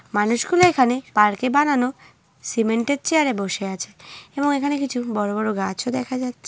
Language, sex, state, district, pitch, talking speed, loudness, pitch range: Bengali, female, West Bengal, North 24 Parganas, 250 Hz, 185 wpm, -21 LUFS, 210-280 Hz